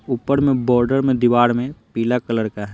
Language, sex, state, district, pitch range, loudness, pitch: Hindi, male, Bihar, Patna, 115-135 Hz, -18 LUFS, 120 Hz